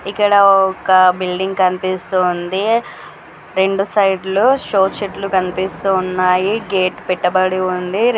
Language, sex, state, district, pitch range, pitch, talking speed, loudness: Telugu, female, Andhra Pradesh, Srikakulam, 185-195 Hz, 190 Hz, 105 wpm, -15 LUFS